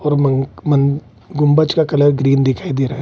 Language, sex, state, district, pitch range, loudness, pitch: Hindi, male, Bihar, Kishanganj, 135-150 Hz, -15 LUFS, 140 Hz